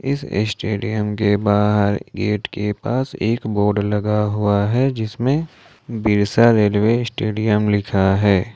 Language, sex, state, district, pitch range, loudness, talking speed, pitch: Hindi, male, Jharkhand, Ranchi, 105-115 Hz, -18 LUFS, 125 wpm, 105 Hz